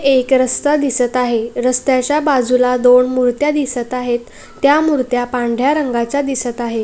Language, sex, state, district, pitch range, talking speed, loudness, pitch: Marathi, female, Maharashtra, Pune, 245-275 Hz, 140 wpm, -15 LUFS, 250 Hz